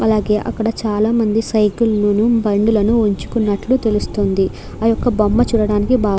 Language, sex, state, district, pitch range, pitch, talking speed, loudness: Telugu, female, Andhra Pradesh, Krishna, 210-230 Hz, 215 Hz, 145 wpm, -16 LUFS